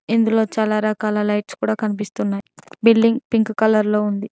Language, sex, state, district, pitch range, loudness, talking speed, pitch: Telugu, female, Telangana, Mahabubabad, 210-225 Hz, -19 LUFS, 150 wpm, 215 Hz